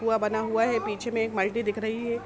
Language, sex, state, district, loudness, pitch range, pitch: Hindi, female, Bihar, Sitamarhi, -27 LUFS, 215-230 Hz, 225 Hz